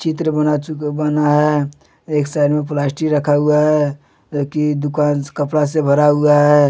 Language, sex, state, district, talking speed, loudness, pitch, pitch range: Hindi, male, Jharkhand, Deoghar, 135 wpm, -16 LUFS, 150 Hz, 145-150 Hz